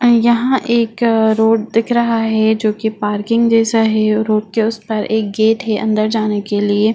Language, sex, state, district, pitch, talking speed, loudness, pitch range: Hindi, female, Bihar, Jahanabad, 220 Hz, 190 wpm, -15 LUFS, 215-230 Hz